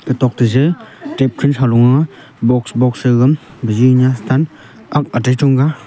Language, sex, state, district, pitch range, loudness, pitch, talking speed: Wancho, male, Arunachal Pradesh, Longding, 120-145 Hz, -14 LUFS, 130 Hz, 145 wpm